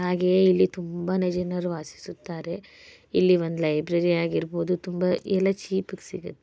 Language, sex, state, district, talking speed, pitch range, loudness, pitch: Kannada, female, Karnataka, Bellary, 130 wpm, 170-185 Hz, -25 LUFS, 180 Hz